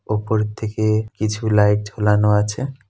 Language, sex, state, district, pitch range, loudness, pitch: Bengali, male, West Bengal, Jalpaiguri, 105-110 Hz, -19 LUFS, 105 Hz